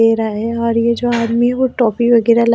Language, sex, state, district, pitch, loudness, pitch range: Hindi, female, Himachal Pradesh, Shimla, 235 Hz, -15 LUFS, 230-235 Hz